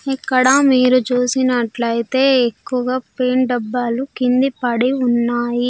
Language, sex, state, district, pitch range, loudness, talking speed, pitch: Telugu, female, Andhra Pradesh, Sri Satya Sai, 240-260 Hz, -16 LUFS, 85 wpm, 250 Hz